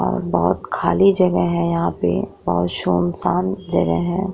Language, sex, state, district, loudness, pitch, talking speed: Hindi, female, Uttar Pradesh, Muzaffarnagar, -19 LUFS, 90 Hz, 150 wpm